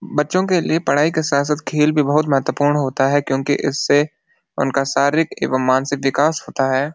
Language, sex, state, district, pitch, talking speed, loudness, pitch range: Hindi, male, Uttarakhand, Uttarkashi, 145 Hz, 175 wpm, -18 LUFS, 135-150 Hz